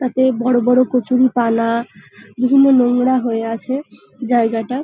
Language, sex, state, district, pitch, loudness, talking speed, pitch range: Bengali, female, West Bengal, North 24 Parganas, 250 Hz, -16 LUFS, 125 wpm, 235-255 Hz